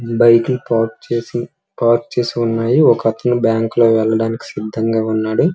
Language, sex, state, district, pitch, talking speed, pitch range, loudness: Telugu, male, Andhra Pradesh, Srikakulam, 115 Hz, 130 wpm, 115-120 Hz, -16 LUFS